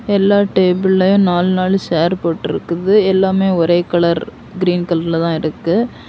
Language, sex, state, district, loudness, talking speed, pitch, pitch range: Tamil, female, Tamil Nadu, Kanyakumari, -15 LUFS, 130 wpm, 185 Hz, 170-195 Hz